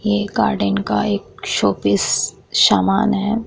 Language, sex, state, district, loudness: Hindi, female, Bihar, Vaishali, -17 LUFS